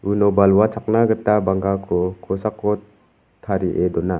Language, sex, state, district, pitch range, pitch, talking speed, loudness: Garo, male, Meghalaya, West Garo Hills, 95-105 Hz, 100 Hz, 115 wpm, -19 LUFS